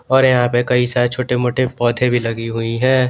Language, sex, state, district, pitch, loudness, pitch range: Hindi, male, Jharkhand, Garhwa, 125 Hz, -16 LUFS, 120-130 Hz